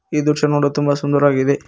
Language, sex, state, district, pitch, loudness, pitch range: Kannada, male, Karnataka, Koppal, 145 Hz, -17 LUFS, 145-150 Hz